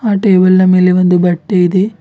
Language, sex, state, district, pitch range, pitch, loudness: Kannada, female, Karnataka, Bidar, 180-195 Hz, 185 Hz, -10 LUFS